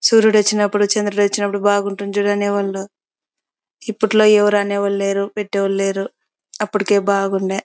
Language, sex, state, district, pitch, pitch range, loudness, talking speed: Telugu, female, Karnataka, Bellary, 205 Hz, 200-210 Hz, -17 LUFS, 120 wpm